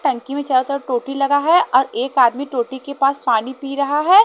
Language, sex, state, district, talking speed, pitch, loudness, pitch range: Hindi, female, Haryana, Charkhi Dadri, 240 wpm, 275 Hz, -18 LUFS, 255-285 Hz